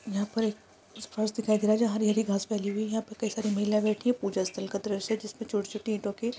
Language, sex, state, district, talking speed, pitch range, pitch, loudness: Hindi, female, Uttar Pradesh, Jalaun, 290 wpm, 205-220 Hz, 215 Hz, -30 LUFS